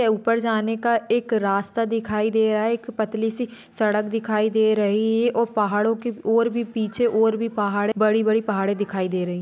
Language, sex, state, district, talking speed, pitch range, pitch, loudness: Hindi, female, Maharashtra, Sindhudurg, 185 wpm, 210-230 Hz, 220 Hz, -22 LUFS